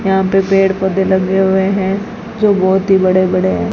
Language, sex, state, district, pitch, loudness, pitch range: Hindi, female, Rajasthan, Bikaner, 190 Hz, -13 LUFS, 190-195 Hz